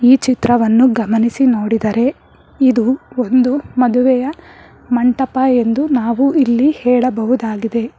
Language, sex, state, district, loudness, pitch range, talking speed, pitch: Kannada, female, Karnataka, Bangalore, -14 LUFS, 235-260 Hz, 90 wpm, 250 Hz